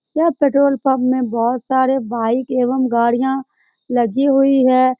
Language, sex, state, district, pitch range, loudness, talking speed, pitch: Hindi, female, Bihar, Saran, 245-270 Hz, -16 LUFS, 145 wpm, 255 Hz